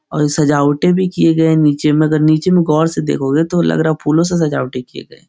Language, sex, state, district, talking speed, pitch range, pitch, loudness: Hindi, male, Bihar, Jahanabad, 270 wpm, 150-165 Hz, 155 Hz, -14 LUFS